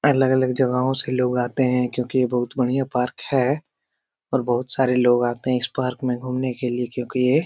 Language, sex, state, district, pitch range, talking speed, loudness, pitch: Hindi, male, Bihar, Lakhisarai, 125-130 Hz, 215 wpm, -21 LUFS, 125 Hz